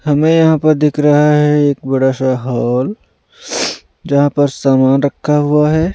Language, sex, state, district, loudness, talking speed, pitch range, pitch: Hindi, male, Punjab, Pathankot, -13 LUFS, 160 wpm, 135-150 Hz, 145 Hz